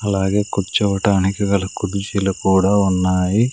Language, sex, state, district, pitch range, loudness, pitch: Telugu, male, Andhra Pradesh, Sri Satya Sai, 95-100 Hz, -18 LUFS, 100 Hz